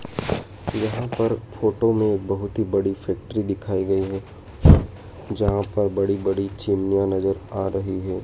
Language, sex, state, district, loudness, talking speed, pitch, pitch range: Hindi, male, Madhya Pradesh, Dhar, -23 LUFS, 155 wpm, 100 Hz, 95-105 Hz